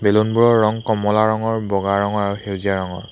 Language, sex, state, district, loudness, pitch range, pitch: Assamese, male, Assam, Hailakandi, -18 LUFS, 100-110 Hz, 105 Hz